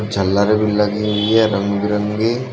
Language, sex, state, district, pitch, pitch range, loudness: Hindi, male, Uttar Pradesh, Shamli, 105 Hz, 100-105 Hz, -17 LUFS